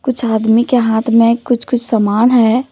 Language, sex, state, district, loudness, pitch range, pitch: Hindi, female, Jharkhand, Deoghar, -13 LUFS, 225-245 Hz, 235 Hz